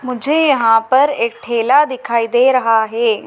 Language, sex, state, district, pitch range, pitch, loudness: Hindi, female, Madhya Pradesh, Dhar, 230-265 Hz, 240 Hz, -14 LUFS